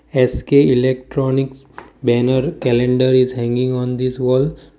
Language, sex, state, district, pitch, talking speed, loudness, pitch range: English, male, Gujarat, Valsad, 130 Hz, 115 wpm, -17 LUFS, 125-135 Hz